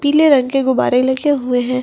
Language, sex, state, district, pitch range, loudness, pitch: Hindi, female, Delhi, New Delhi, 255-285 Hz, -14 LUFS, 260 Hz